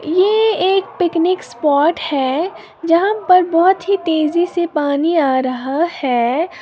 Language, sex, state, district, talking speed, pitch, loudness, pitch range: Hindi, female, Uttar Pradesh, Lalitpur, 135 wpm, 335 Hz, -16 LUFS, 295-365 Hz